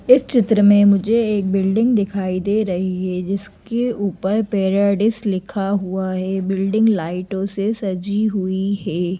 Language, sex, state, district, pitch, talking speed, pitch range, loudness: Hindi, female, Madhya Pradesh, Bhopal, 200 Hz, 145 wpm, 190-215 Hz, -19 LUFS